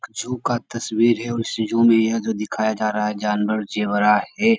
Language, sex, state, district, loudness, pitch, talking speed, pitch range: Hindi, male, Bihar, Jamui, -20 LUFS, 110 Hz, 220 wpm, 105-115 Hz